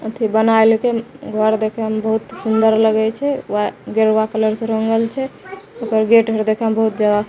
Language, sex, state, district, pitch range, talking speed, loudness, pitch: Maithili, female, Bihar, Begusarai, 220-225 Hz, 180 wpm, -17 LUFS, 220 Hz